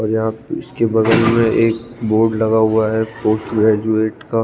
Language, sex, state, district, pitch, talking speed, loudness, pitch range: Hindi, male, Chandigarh, Chandigarh, 110 Hz, 175 wpm, -16 LUFS, 110-115 Hz